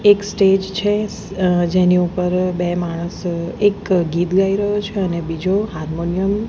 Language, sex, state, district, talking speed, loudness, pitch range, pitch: Gujarati, female, Gujarat, Gandhinagar, 155 wpm, -18 LUFS, 175-205 Hz, 185 Hz